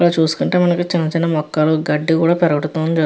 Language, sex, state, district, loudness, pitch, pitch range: Telugu, female, Andhra Pradesh, Chittoor, -16 LUFS, 165 Hz, 155-170 Hz